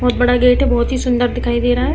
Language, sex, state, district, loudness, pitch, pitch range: Hindi, female, Uttar Pradesh, Hamirpur, -15 LUFS, 245 Hz, 245-250 Hz